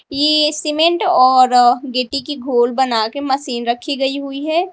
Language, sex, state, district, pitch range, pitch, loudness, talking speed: Hindi, female, Uttar Pradesh, Lalitpur, 255-300 Hz, 275 Hz, -15 LUFS, 165 wpm